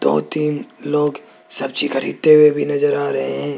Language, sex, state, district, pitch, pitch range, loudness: Hindi, male, Rajasthan, Jaipur, 145 Hz, 140-150 Hz, -17 LUFS